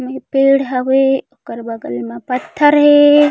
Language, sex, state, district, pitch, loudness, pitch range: Chhattisgarhi, female, Chhattisgarh, Raigarh, 270 Hz, -13 LUFS, 250-290 Hz